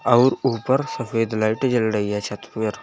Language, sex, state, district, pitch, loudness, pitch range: Hindi, male, Uttar Pradesh, Saharanpur, 115 Hz, -21 LUFS, 110-130 Hz